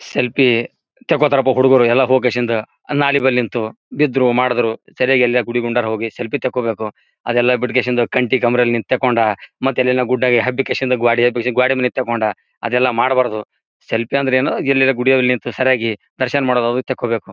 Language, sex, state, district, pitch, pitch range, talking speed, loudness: Kannada, male, Karnataka, Gulbarga, 125 Hz, 120-130 Hz, 155 wpm, -16 LUFS